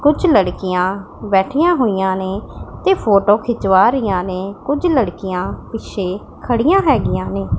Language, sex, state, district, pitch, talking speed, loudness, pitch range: Punjabi, female, Punjab, Pathankot, 200 Hz, 125 wpm, -16 LUFS, 190-260 Hz